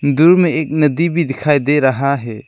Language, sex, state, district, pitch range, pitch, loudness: Hindi, male, Arunachal Pradesh, Lower Dibang Valley, 140-160 Hz, 150 Hz, -14 LUFS